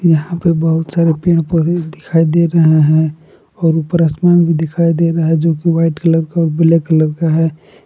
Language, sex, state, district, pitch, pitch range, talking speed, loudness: Hindi, male, Jharkhand, Palamu, 165 Hz, 160-170 Hz, 205 wpm, -13 LUFS